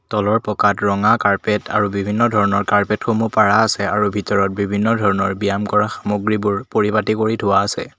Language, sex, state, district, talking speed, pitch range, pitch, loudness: Assamese, male, Assam, Kamrup Metropolitan, 165 wpm, 100-110 Hz, 105 Hz, -17 LUFS